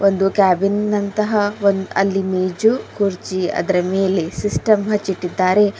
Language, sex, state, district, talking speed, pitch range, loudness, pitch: Kannada, female, Karnataka, Bidar, 125 wpm, 185-205 Hz, -18 LUFS, 195 Hz